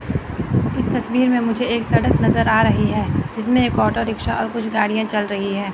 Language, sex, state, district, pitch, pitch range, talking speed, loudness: Hindi, female, Chandigarh, Chandigarh, 225 Hz, 210-245 Hz, 210 wpm, -19 LUFS